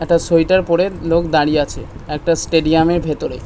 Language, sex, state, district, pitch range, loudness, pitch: Bengali, male, West Bengal, North 24 Parganas, 155-170 Hz, -16 LUFS, 165 Hz